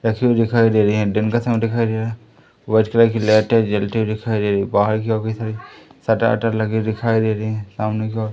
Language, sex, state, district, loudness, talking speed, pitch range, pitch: Hindi, male, Madhya Pradesh, Umaria, -18 LUFS, 275 wpm, 110-115 Hz, 110 Hz